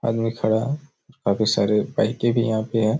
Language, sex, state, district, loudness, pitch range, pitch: Hindi, male, Chhattisgarh, Raigarh, -22 LUFS, 110-120 Hz, 115 Hz